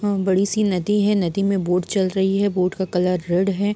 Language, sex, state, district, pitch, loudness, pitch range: Hindi, female, Chhattisgarh, Bilaspur, 190 Hz, -20 LUFS, 180-200 Hz